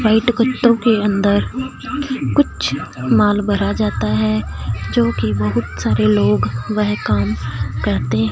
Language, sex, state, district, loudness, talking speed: Hindi, female, Punjab, Fazilka, -17 LUFS, 125 wpm